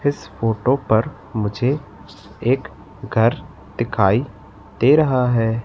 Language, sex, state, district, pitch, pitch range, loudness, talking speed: Hindi, male, Madhya Pradesh, Katni, 115 Hz, 100-130 Hz, -19 LUFS, 105 wpm